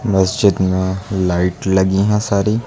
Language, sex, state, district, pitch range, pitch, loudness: Hindi, male, Uttar Pradesh, Lucknow, 95-100 Hz, 95 Hz, -16 LUFS